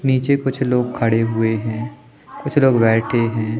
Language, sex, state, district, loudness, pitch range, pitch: Hindi, male, Madhya Pradesh, Katni, -18 LUFS, 110-130 Hz, 115 Hz